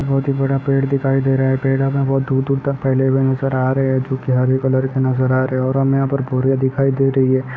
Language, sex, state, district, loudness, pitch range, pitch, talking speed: Hindi, male, Uttar Pradesh, Ghazipur, -17 LUFS, 130-135 Hz, 135 Hz, 285 wpm